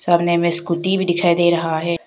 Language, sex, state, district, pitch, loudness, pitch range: Hindi, female, Arunachal Pradesh, Papum Pare, 170 Hz, -17 LUFS, 170-175 Hz